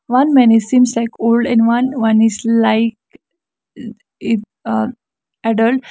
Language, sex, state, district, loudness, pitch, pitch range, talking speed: English, female, Sikkim, Gangtok, -14 LUFS, 230 Hz, 225-245 Hz, 150 wpm